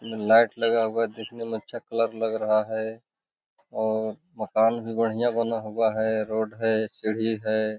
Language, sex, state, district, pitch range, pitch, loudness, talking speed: Hindi, male, Bihar, Jamui, 110-115 Hz, 110 Hz, -26 LUFS, 170 wpm